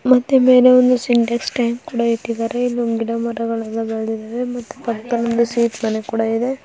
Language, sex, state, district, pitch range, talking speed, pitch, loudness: Kannada, female, Karnataka, Dharwad, 230-245 Hz, 155 wpm, 235 Hz, -18 LUFS